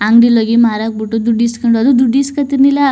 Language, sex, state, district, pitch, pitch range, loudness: Kannada, female, Karnataka, Chamarajanagar, 235 Hz, 225-270 Hz, -12 LUFS